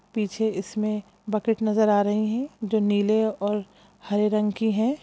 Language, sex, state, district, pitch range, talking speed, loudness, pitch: Hindi, female, Bihar, Jamui, 205-220 Hz, 180 wpm, -24 LUFS, 215 Hz